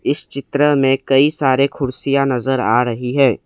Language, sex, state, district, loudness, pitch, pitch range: Hindi, male, Assam, Kamrup Metropolitan, -16 LUFS, 135 Hz, 130-140 Hz